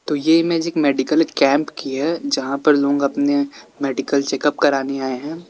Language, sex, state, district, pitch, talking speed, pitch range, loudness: Hindi, male, Uttar Pradesh, Lalitpur, 145 Hz, 185 wpm, 140-165 Hz, -19 LUFS